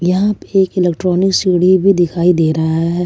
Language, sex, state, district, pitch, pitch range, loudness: Hindi, female, Jharkhand, Ranchi, 180 Hz, 170-190 Hz, -13 LUFS